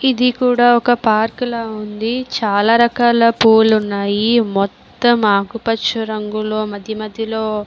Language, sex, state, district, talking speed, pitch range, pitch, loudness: Telugu, female, Andhra Pradesh, Visakhapatnam, 125 wpm, 215-235 Hz, 220 Hz, -16 LUFS